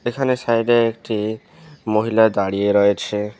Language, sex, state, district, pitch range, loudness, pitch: Bengali, male, West Bengal, Alipurduar, 105-120 Hz, -19 LUFS, 110 Hz